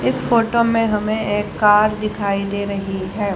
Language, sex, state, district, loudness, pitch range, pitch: Hindi, female, Haryana, Jhajjar, -18 LUFS, 200-215 Hz, 210 Hz